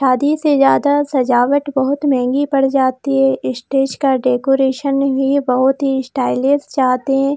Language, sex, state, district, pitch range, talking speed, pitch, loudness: Hindi, female, Jharkhand, Jamtara, 260-280 Hz, 145 wpm, 270 Hz, -15 LUFS